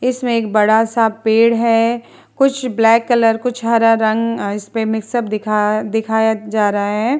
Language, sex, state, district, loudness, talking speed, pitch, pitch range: Hindi, female, Bihar, Vaishali, -15 LUFS, 185 wpm, 225 Hz, 215-230 Hz